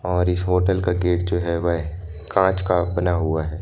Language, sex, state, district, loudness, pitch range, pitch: Hindi, male, Madhya Pradesh, Bhopal, -21 LUFS, 85-90 Hz, 90 Hz